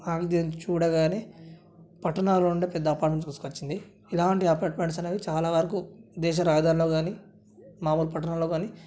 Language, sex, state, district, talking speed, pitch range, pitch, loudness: Telugu, male, Karnataka, Raichur, 115 wpm, 160-180 Hz, 170 Hz, -27 LUFS